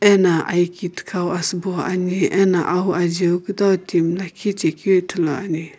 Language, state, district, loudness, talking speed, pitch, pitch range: Sumi, Nagaland, Kohima, -19 LUFS, 145 wpm, 180 Hz, 175-190 Hz